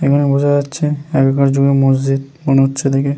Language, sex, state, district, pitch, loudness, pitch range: Bengali, male, West Bengal, Paschim Medinipur, 140 Hz, -14 LUFS, 135-145 Hz